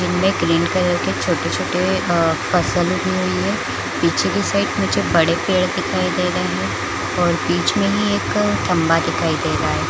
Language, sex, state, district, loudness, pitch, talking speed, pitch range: Hindi, female, Chhattisgarh, Balrampur, -18 LUFS, 180 Hz, 165 wpm, 170-200 Hz